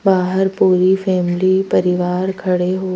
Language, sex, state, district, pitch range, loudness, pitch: Hindi, female, Madhya Pradesh, Bhopal, 180-190 Hz, -16 LUFS, 185 Hz